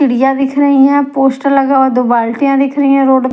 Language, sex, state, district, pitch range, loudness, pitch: Hindi, female, Punjab, Kapurthala, 265-275 Hz, -11 LUFS, 270 Hz